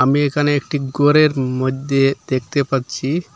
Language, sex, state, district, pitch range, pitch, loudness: Bengali, male, Assam, Hailakandi, 130-145 Hz, 140 Hz, -17 LUFS